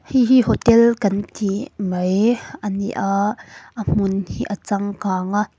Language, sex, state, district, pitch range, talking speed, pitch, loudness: Mizo, female, Mizoram, Aizawl, 195-230 Hz, 160 wpm, 205 Hz, -19 LUFS